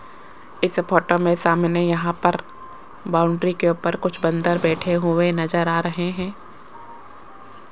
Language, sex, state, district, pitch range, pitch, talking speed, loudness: Hindi, female, Rajasthan, Jaipur, 170-175 Hz, 175 Hz, 130 wpm, -21 LUFS